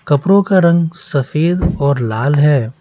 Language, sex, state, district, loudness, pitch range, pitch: Hindi, male, Bihar, West Champaran, -14 LUFS, 140-170 Hz, 150 Hz